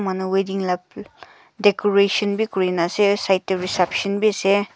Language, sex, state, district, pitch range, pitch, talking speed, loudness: Nagamese, female, Nagaland, Kohima, 190-205 Hz, 195 Hz, 165 wpm, -20 LUFS